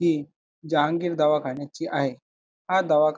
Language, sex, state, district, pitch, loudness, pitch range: Marathi, male, Maharashtra, Pune, 150 Hz, -25 LUFS, 145-165 Hz